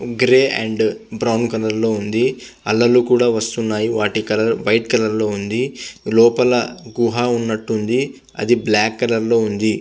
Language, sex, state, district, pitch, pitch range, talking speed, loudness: Telugu, male, Andhra Pradesh, Visakhapatnam, 115 Hz, 110-120 Hz, 145 wpm, -17 LUFS